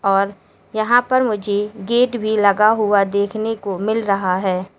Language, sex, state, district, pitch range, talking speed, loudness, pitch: Hindi, female, Uttar Pradesh, Lalitpur, 195-220 Hz, 165 wpm, -18 LUFS, 205 Hz